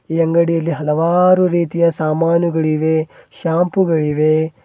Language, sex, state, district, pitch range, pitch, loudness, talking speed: Kannada, male, Karnataka, Bidar, 155-170 Hz, 165 Hz, -16 LUFS, 90 wpm